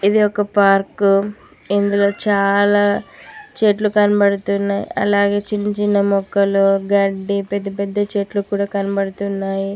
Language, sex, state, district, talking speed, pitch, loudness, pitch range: Telugu, female, Telangana, Mahabubabad, 100 wpm, 200 Hz, -17 LUFS, 200-205 Hz